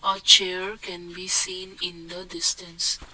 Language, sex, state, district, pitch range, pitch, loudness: English, male, Assam, Kamrup Metropolitan, 175-190 Hz, 185 Hz, -22 LUFS